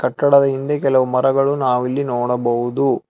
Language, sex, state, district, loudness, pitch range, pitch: Kannada, male, Karnataka, Bangalore, -17 LUFS, 125-140 Hz, 130 Hz